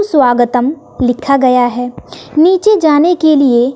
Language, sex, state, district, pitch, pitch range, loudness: Hindi, female, Bihar, West Champaran, 275 Hz, 245-315 Hz, -11 LUFS